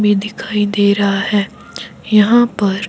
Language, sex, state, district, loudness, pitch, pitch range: Hindi, male, Himachal Pradesh, Shimla, -14 LUFS, 205 Hz, 200-215 Hz